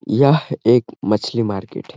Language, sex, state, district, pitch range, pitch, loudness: Hindi, male, Bihar, Gaya, 105-125 Hz, 115 Hz, -18 LUFS